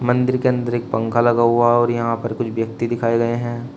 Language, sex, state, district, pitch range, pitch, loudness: Hindi, male, Uttar Pradesh, Shamli, 115-120 Hz, 120 Hz, -19 LUFS